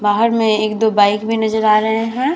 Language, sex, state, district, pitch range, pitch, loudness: Hindi, female, Bihar, Vaishali, 215-225 Hz, 220 Hz, -15 LUFS